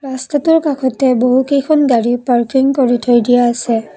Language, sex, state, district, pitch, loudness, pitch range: Assamese, female, Assam, Kamrup Metropolitan, 260 Hz, -13 LUFS, 245-275 Hz